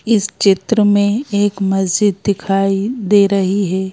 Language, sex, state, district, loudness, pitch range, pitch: Hindi, female, Madhya Pradesh, Bhopal, -15 LUFS, 195-205 Hz, 200 Hz